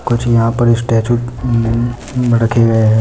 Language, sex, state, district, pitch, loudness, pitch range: Hindi, male, Bihar, Muzaffarpur, 120 Hz, -14 LUFS, 115-120 Hz